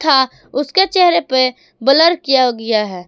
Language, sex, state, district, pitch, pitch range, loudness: Hindi, female, Jharkhand, Garhwa, 270 Hz, 250-330 Hz, -14 LUFS